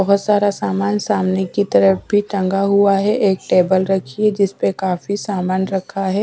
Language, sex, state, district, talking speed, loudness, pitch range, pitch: Hindi, female, Bihar, West Champaran, 195 wpm, -17 LUFS, 190-205 Hz, 195 Hz